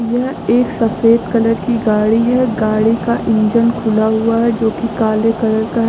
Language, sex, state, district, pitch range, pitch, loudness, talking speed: Hindi, female, Uttar Pradesh, Lucknow, 220-235 Hz, 230 Hz, -14 LUFS, 195 wpm